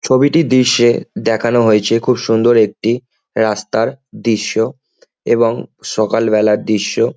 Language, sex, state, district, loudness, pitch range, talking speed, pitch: Bengali, male, West Bengal, Jhargram, -14 LUFS, 110-125 Hz, 100 wpm, 115 Hz